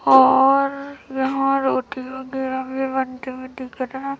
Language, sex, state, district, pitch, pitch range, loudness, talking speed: Hindi, female, Chhattisgarh, Raipur, 265 Hz, 260-270 Hz, -20 LUFS, 100 wpm